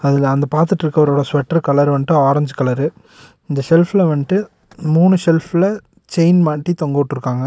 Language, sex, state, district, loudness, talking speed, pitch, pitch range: Tamil, male, Tamil Nadu, Nilgiris, -15 LUFS, 135 wpm, 150 Hz, 140-170 Hz